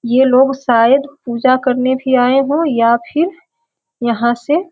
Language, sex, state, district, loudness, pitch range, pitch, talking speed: Hindi, female, Bihar, Sitamarhi, -14 LUFS, 240-285 Hz, 260 Hz, 165 wpm